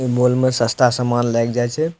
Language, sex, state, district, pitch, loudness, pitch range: Maithili, male, Bihar, Supaul, 125 Hz, -17 LUFS, 120-130 Hz